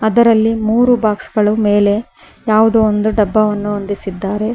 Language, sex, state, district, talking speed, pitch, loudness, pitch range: Kannada, female, Karnataka, Koppal, 120 wpm, 215 Hz, -14 LUFS, 205-220 Hz